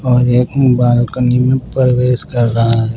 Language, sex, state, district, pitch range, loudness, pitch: Hindi, male, Maharashtra, Washim, 120-125 Hz, -13 LUFS, 125 Hz